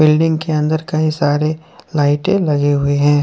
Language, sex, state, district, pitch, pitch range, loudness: Hindi, male, Jharkhand, Deoghar, 155 Hz, 145-160 Hz, -16 LUFS